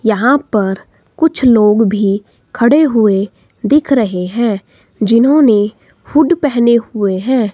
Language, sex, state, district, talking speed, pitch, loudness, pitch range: Hindi, female, Himachal Pradesh, Shimla, 120 wpm, 230 Hz, -12 LUFS, 210-270 Hz